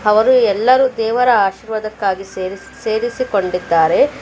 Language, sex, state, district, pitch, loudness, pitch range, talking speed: Kannada, female, Karnataka, Bangalore, 220 Hz, -16 LUFS, 195-245 Hz, 85 wpm